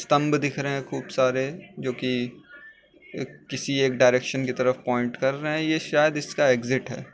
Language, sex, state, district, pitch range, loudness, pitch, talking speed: Hindi, male, Uttar Pradesh, Etah, 130-150 Hz, -24 LUFS, 135 Hz, 195 wpm